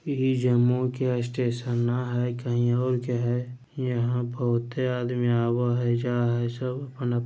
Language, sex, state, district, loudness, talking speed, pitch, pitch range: Hindi, male, Bihar, Jamui, -26 LUFS, 165 wpm, 120 Hz, 120-125 Hz